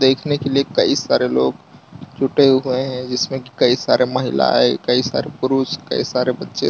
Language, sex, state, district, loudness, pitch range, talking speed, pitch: Hindi, male, Gujarat, Valsad, -18 LUFS, 125-135 Hz, 170 wpm, 130 Hz